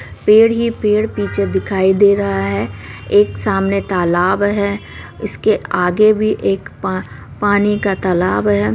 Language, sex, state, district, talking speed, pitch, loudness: Maithili, female, Bihar, Supaul, 145 wpm, 185 Hz, -15 LUFS